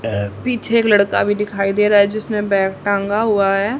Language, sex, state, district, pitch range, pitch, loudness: Hindi, female, Haryana, Rohtak, 195-215 Hz, 205 Hz, -16 LUFS